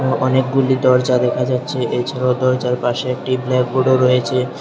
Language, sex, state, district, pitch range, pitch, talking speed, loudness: Bengali, male, Tripura, Unakoti, 125-130 Hz, 125 Hz, 130 wpm, -17 LUFS